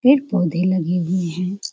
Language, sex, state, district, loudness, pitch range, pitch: Hindi, female, Bihar, Jamui, -20 LUFS, 175-200 Hz, 185 Hz